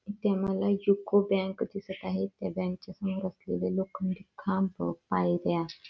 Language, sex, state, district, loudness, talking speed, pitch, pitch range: Marathi, female, Karnataka, Belgaum, -31 LUFS, 100 wpm, 190 Hz, 130-200 Hz